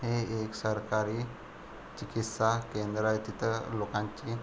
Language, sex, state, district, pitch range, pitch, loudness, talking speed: Marathi, male, Maharashtra, Pune, 110-115 Hz, 110 Hz, -33 LUFS, 120 wpm